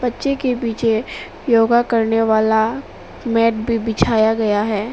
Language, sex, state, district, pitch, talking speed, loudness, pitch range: Hindi, female, Arunachal Pradesh, Papum Pare, 230 Hz, 135 wpm, -17 LUFS, 220-235 Hz